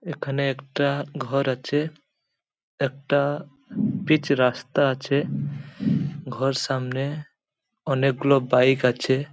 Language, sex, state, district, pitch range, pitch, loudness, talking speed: Bengali, male, West Bengal, Paschim Medinipur, 135-150 Hz, 140 Hz, -24 LUFS, 95 wpm